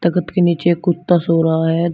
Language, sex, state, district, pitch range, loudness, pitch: Hindi, male, Uttar Pradesh, Shamli, 165-175 Hz, -16 LUFS, 170 Hz